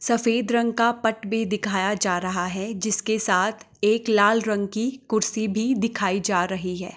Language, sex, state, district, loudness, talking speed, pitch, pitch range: Hindi, female, Bihar, Gopalganj, -23 LUFS, 180 wpm, 215 Hz, 195-225 Hz